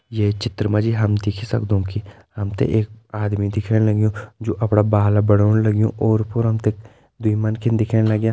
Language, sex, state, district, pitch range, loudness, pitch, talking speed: Kumaoni, male, Uttarakhand, Tehri Garhwal, 105-110 Hz, -19 LUFS, 110 Hz, 185 wpm